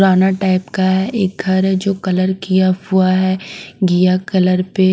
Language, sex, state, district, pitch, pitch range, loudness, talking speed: Hindi, female, Bihar, West Champaran, 190 Hz, 185-190 Hz, -15 LUFS, 180 wpm